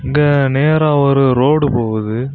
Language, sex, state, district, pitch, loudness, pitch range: Tamil, male, Tamil Nadu, Kanyakumari, 140 Hz, -13 LUFS, 125-145 Hz